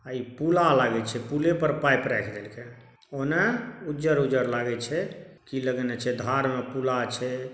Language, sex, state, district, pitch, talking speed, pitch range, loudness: Maithili, male, Bihar, Saharsa, 130 Hz, 165 wpm, 125-150 Hz, -26 LUFS